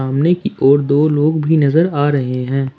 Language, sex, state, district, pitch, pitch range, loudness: Hindi, male, Jharkhand, Ranchi, 145 Hz, 135-155 Hz, -14 LUFS